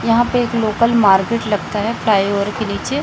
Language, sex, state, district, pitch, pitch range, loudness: Hindi, female, Chhattisgarh, Raipur, 220 Hz, 205-235 Hz, -16 LUFS